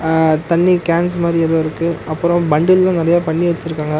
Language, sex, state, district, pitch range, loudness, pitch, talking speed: Tamil, male, Tamil Nadu, Namakkal, 160-170 Hz, -15 LUFS, 170 Hz, 165 wpm